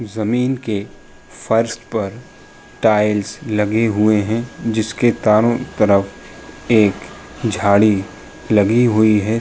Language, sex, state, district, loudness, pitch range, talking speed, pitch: Hindi, male, Uttar Pradesh, Jalaun, -17 LUFS, 105-115 Hz, 100 wpm, 110 Hz